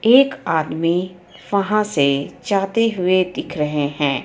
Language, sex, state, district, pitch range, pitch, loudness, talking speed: Hindi, female, Jharkhand, Ranchi, 150-200 Hz, 180 Hz, -19 LUFS, 125 wpm